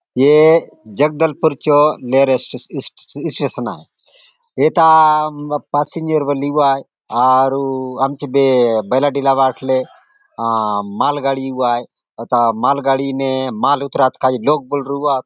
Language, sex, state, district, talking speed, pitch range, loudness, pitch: Halbi, male, Chhattisgarh, Bastar, 120 wpm, 130-150 Hz, -15 LUFS, 135 Hz